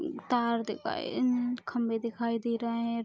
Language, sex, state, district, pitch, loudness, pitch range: Hindi, female, Bihar, Araria, 235 Hz, -31 LUFS, 230-245 Hz